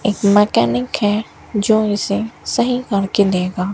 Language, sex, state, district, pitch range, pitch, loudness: Hindi, female, Rajasthan, Bikaner, 195-215 Hz, 205 Hz, -17 LUFS